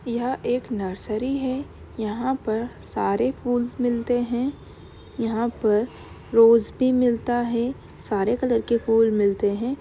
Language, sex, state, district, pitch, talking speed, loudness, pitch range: Hindi, female, Bihar, Darbhanga, 235 Hz, 135 wpm, -23 LUFS, 225-250 Hz